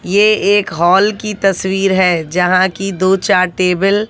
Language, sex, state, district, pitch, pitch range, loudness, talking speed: Hindi, female, Haryana, Jhajjar, 190 Hz, 185-200 Hz, -13 LUFS, 175 wpm